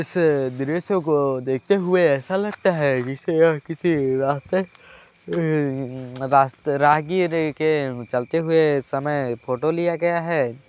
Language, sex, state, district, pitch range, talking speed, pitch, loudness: Hindi, male, Chhattisgarh, Balrampur, 135-170 Hz, 130 wpm, 150 Hz, -21 LUFS